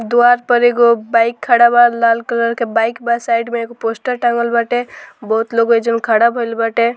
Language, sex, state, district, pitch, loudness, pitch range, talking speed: Bhojpuri, female, Bihar, Muzaffarpur, 235 Hz, -14 LUFS, 230-240 Hz, 200 wpm